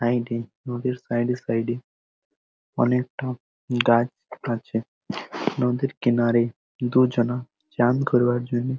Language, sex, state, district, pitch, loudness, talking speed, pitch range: Bengali, male, West Bengal, Jhargram, 120 Hz, -24 LUFS, 135 wpm, 120-125 Hz